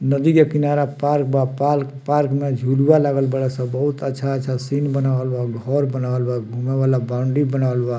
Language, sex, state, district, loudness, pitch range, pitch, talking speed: Bhojpuri, male, Bihar, Muzaffarpur, -19 LUFS, 130-145 Hz, 135 Hz, 185 wpm